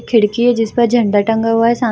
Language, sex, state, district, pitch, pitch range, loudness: Hindi, female, Bihar, Samastipur, 230 Hz, 225-235 Hz, -14 LUFS